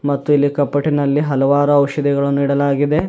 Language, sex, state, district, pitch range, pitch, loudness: Kannada, male, Karnataka, Bidar, 140-145 Hz, 145 Hz, -16 LUFS